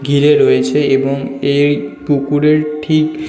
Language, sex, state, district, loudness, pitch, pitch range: Bengali, male, West Bengal, North 24 Parganas, -13 LUFS, 145 Hz, 140-150 Hz